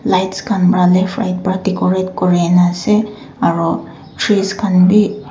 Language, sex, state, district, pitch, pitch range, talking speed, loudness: Nagamese, female, Nagaland, Dimapur, 190 Hz, 180-205 Hz, 160 wpm, -14 LUFS